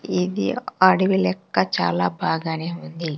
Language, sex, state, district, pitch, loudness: Telugu, female, Andhra Pradesh, Sri Satya Sai, 165 Hz, -21 LUFS